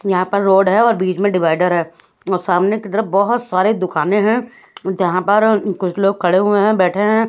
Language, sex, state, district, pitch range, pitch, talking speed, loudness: Hindi, female, Odisha, Khordha, 185-215 Hz, 195 Hz, 215 wpm, -15 LUFS